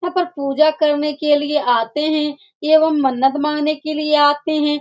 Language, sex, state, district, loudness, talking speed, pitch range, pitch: Hindi, female, Bihar, Saran, -17 LUFS, 185 wpm, 290-310 Hz, 300 Hz